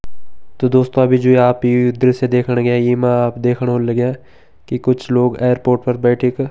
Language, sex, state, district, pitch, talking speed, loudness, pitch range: Garhwali, male, Uttarakhand, Tehri Garhwal, 125 Hz, 210 wpm, -15 LUFS, 120-125 Hz